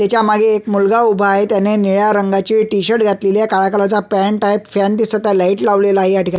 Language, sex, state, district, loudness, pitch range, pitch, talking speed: Marathi, male, Maharashtra, Sindhudurg, -14 LUFS, 195-215 Hz, 205 Hz, 225 wpm